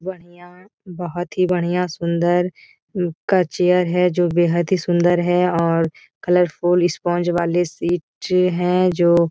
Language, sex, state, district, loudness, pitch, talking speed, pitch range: Hindi, female, Bihar, Jahanabad, -19 LUFS, 175 Hz, 130 wpm, 175-180 Hz